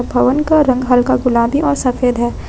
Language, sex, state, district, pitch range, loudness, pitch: Hindi, female, Jharkhand, Ranchi, 245-280 Hz, -14 LUFS, 255 Hz